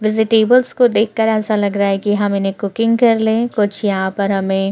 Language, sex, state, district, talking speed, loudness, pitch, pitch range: Hindi, female, Chhattisgarh, Korba, 215 wpm, -15 LUFS, 210 Hz, 200-225 Hz